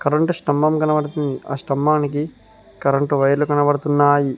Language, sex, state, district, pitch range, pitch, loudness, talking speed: Telugu, male, Telangana, Mahabubabad, 140-150 Hz, 145 Hz, -19 LUFS, 110 wpm